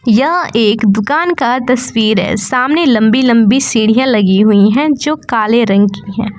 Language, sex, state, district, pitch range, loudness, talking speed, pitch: Hindi, female, Jharkhand, Palamu, 215-255 Hz, -11 LUFS, 170 wpm, 225 Hz